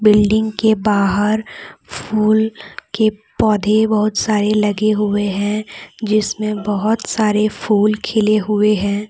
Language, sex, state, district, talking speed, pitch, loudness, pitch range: Hindi, female, Jharkhand, Deoghar, 120 wpm, 215 Hz, -16 LUFS, 210-215 Hz